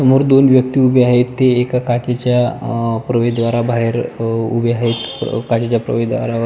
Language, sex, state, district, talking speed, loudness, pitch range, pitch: Marathi, male, Maharashtra, Pune, 130 wpm, -15 LUFS, 115-125 Hz, 120 Hz